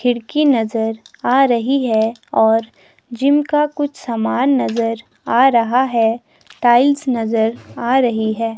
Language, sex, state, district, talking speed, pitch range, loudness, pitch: Hindi, female, Himachal Pradesh, Shimla, 135 wpm, 225-265 Hz, -16 LUFS, 235 Hz